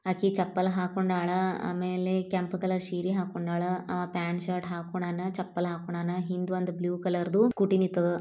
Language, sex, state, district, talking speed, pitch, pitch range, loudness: Kannada, female, Karnataka, Bijapur, 145 wpm, 180 Hz, 175-185 Hz, -30 LUFS